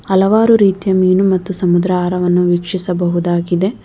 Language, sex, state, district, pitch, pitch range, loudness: Kannada, female, Karnataka, Bangalore, 185 Hz, 175-190 Hz, -14 LUFS